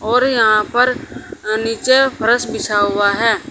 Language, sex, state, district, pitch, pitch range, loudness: Hindi, female, Uttar Pradesh, Saharanpur, 225 Hz, 215-250 Hz, -15 LUFS